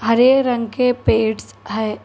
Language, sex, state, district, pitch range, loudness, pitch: Hindi, female, Telangana, Hyderabad, 220-250 Hz, -17 LUFS, 230 Hz